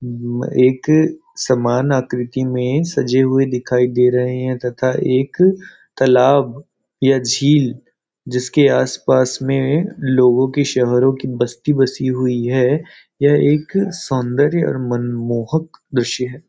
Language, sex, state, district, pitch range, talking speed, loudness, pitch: Hindi, male, Chhattisgarh, Rajnandgaon, 125-145 Hz, 120 wpm, -16 LUFS, 130 Hz